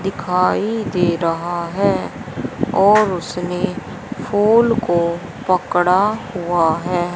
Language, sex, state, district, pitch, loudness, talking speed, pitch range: Hindi, female, Haryana, Rohtak, 180 Hz, -18 LUFS, 90 wpm, 175-200 Hz